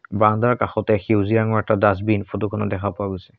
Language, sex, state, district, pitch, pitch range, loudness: Assamese, male, Assam, Sonitpur, 105 Hz, 100-110 Hz, -20 LUFS